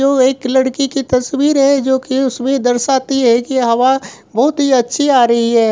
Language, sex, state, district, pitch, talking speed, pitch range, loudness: Hindi, female, Bihar, Supaul, 265 Hz, 200 wpm, 245-275 Hz, -13 LUFS